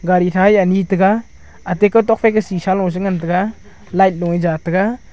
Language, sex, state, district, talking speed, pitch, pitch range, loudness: Wancho, male, Arunachal Pradesh, Longding, 185 wpm, 190 Hz, 180-205 Hz, -15 LUFS